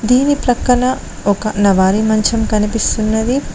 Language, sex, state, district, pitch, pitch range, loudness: Telugu, female, Telangana, Mahabubabad, 220 Hz, 215-245 Hz, -14 LUFS